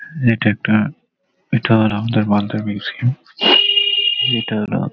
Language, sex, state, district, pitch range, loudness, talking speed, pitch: Bengali, male, West Bengal, Malda, 105-130 Hz, -16 LUFS, 110 wpm, 110 Hz